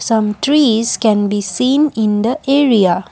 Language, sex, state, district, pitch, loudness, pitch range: English, female, Assam, Kamrup Metropolitan, 225 Hz, -14 LUFS, 210-270 Hz